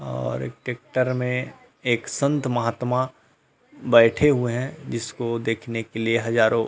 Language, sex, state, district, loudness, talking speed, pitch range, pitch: Hindi, male, Chhattisgarh, Rajnandgaon, -23 LUFS, 145 wpm, 115-125 Hz, 120 Hz